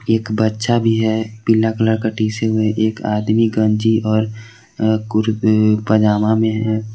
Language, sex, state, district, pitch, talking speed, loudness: Hindi, male, Jharkhand, Garhwa, 110 Hz, 145 wpm, -17 LUFS